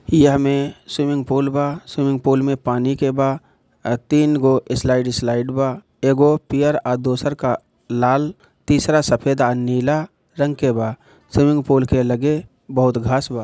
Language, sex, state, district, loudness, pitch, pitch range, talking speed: Bhojpuri, male, Bihar, Gopalganj, -18 LUFS, 135 Hz, 125-145 Hz, 170 wpm